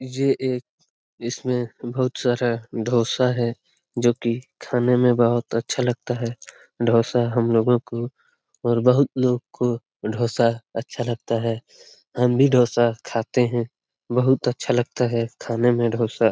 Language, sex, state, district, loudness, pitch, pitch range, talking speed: Hindi, male, Bihar, Lakhisarai, -22 LUFS, 120 Hz, 115-125 Hz, 145 wpm